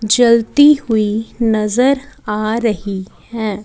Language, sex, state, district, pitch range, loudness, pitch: Hindi, female, Chandigarh, Chandigarh, 210-240 Hz, -15 LUFS, 225 Hz